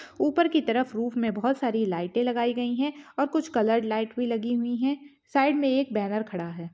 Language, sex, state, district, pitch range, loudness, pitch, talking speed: Hindi, female, Chhattisgarh, Rajnandgaon, 225-275 Hz, -26 LUFS, 240 Hz, 225 wpm